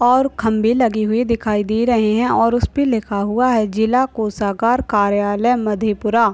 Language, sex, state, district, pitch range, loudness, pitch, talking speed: Hindi, male, Bihar, Madhepura, 210-240 Hz, -17 LUFS, 225 Hz, 160 wpm